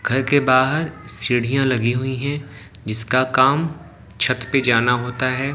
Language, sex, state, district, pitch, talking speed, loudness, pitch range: Hindi, male, Haryana, Jhajjar, 130 Hz, 150 wpm, -19 LUFS, 120-140 Hz